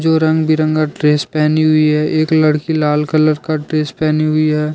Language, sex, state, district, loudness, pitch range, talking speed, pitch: Hindi, male, Jharkhand, Deoghar, -14 LUFS, 150-155 Hz, 200 wpm, 155 Hz